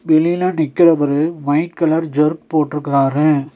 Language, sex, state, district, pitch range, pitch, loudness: Tamil, male, Tamil Nadu, Nilgiris, 145-165 Hz, 155 Hz, -16 LUFS